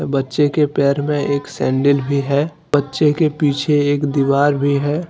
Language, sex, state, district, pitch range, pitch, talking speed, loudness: Hindi, male, Jharkhand, Deoghar, 140-150 Hz, 145 Hz, 175 wpm, -17 LUFS